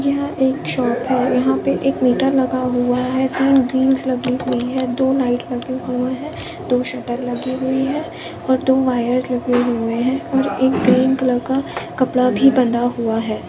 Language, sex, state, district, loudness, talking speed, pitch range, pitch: Hindi, female, Chhattisgarh, Bilaspur, -18 LUFS, 185 wpm, 245-265 Hz, 255 Hz